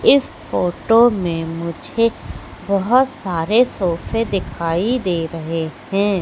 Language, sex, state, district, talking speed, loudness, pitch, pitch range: Hindi, female, Madhya Pradesh, Katni, 105 wpm, -19 LUFS, 195 Hz, 165-230 Hz